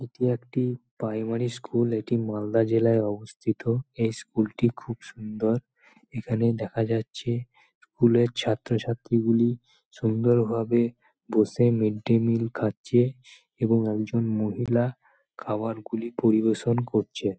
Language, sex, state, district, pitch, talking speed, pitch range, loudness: Bengali, male, West Bengal, Malda, 115 Hz, 115 wpm, 110-120 Hz, -26 LUFS